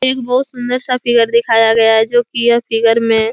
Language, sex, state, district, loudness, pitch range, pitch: Hindi, female, Bihar, Jahanabad, -13 LUFS, 225-250 Hz, 235 Hz